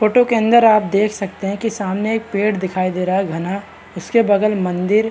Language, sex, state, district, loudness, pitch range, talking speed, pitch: Hindi, male, Uttar Pradesh, Varanasi, -17 LUFS, 190-220 Hz, 245 wpm, 205 Hz